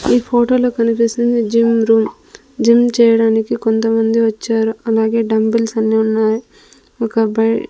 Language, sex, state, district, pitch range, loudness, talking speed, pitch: Telugu, female, Andhra Pradesh, Sri Satya Sai, 220-230 Hz, -15 LUFS, 110 wpm, 225 Hz